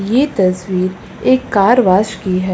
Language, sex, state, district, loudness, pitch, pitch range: Hindi, female, Uttar Pradesh, Lucknow, -14 LUFS, 195 Hz, 185-245 Hz